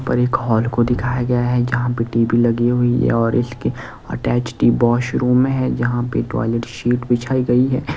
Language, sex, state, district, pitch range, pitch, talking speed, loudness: Hindi, male, Delhi, New Delhi, 115-125 Hz, 120 Hz, 190 wpm, -18 LUFS